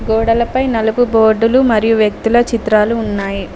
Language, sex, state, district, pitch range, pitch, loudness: Telugu, female, Telangana, Mahabubabad, 215-235 Hz, 225 Hz, -13 LUFS